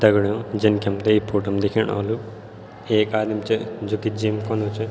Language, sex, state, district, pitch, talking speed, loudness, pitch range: Garhwali, male, Uttarakhand, Tehri Garhwal, 110 Hz, 210 wpm, -22 LUFS, 105-110 Hz